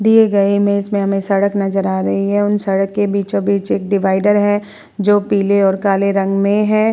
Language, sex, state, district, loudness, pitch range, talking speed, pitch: Hindi, female, Bihar, Vaishali, -15 LUFS, 195-205 Hz, 200 wpm, 200 Hz